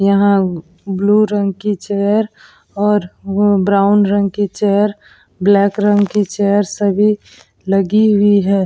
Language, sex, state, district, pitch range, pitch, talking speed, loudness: Hindi, female, Uttar Pradesh, Etah, 195-205 Hz, 200 Hz, 130 wpm, -14 LUFS